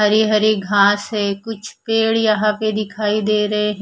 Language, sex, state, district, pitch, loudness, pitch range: Hindi, female, Odisha, Khordha, 215 Hz, -17 LUFS, 210-215 Hz